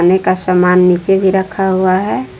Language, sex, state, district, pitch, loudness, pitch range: Hindi, female, Jharkhand, Palamu, 185 Hz, -12 LUFS, 180-190 Hz